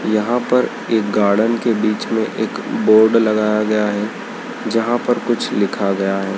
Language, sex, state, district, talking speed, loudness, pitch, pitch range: Hindi, male, Madhya Pradesh, Dhar, 170 wpm, -17 LUFS, 110 Hz, 105-115 Hz